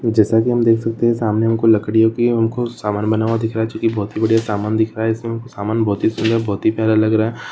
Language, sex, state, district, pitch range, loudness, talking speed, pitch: Hindi, female, Rajasthan, Churu, 110-115 Hz, -17 LUFS, 265 wpm, 110 Hz